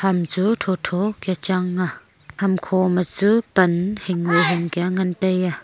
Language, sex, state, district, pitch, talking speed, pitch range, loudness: Wancho, female, Arunachal Pradesh, Longding, 185 Hz, 180 wpm, 175-190 Hz, -20 LUFS